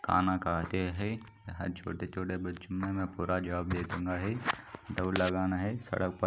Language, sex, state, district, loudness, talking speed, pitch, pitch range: Hindi, male, Maharashtra, Solapur, -34 LUFS, 115 wpm, 90 Hz, 90-95 Hz